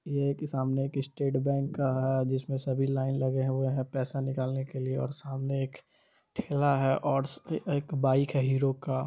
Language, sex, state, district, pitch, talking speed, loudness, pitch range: Hindi, male, Bihar, Supaul, 135 Hz, 190 wpm, -30 LUFS, 130-140 Hz